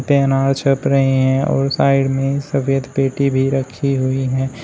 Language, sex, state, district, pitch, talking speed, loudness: Hindi, male, Uttar Pradesh, Shamli, 135 Hz, 170 wpm, -17 LUFS